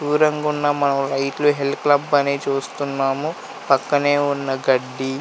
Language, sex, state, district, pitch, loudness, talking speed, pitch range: Telugu, male, Andhra Pradesh, Visakhapatnam, 140 Hz, -20 LUFS, 140 wpm, 135-145 Hz